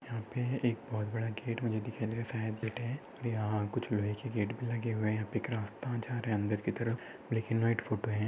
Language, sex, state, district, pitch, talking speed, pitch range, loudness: Hindi, male, Maharashtra, Aurangabad, 115 Hz, 240 wpm, 110-120 Hz, -35 LUFS